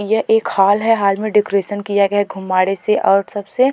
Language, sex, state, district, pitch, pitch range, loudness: Hindi, female, Uttarakhand, Tehri Garhwal, 205 Hz, 195-215 Hz, -16 LUFS